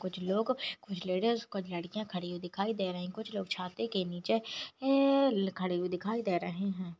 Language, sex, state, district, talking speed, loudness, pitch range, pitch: Hindi, female, Maharashtra, Aurangabad, 195 wpm, -34 LUFS, 180-220 Hz, 190 Hz